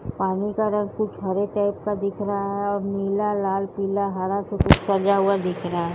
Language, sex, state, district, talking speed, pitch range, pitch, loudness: Hindi, female, Uttar Pradesh, Budaun, 210 wpm, 195-205 Hz, 200 Hz, -23 LUFS